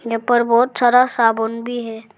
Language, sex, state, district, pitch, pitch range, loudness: Hindi, female, Arunachal Pradesh, Lower Dibang Valley, 235 Hz, 225-245 Hz, -16 LUFS